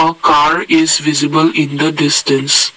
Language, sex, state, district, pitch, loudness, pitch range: English, male, Assam, Kamrup Metropolitan, 155 Hz, -12 LUFS, 150-160 Hz